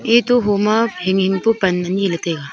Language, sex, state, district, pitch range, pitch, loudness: Wancho, female, Arunachal Pradesh, Longding, 180-225 Hz, 195 Hz, -17 LUFS